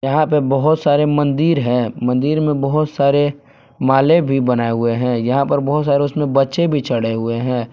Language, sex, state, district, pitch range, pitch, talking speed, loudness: Hindi, male, Jharkhand, Palamu, 125-150 Hz, 140 Hz, 195 wpm, -16 LUFS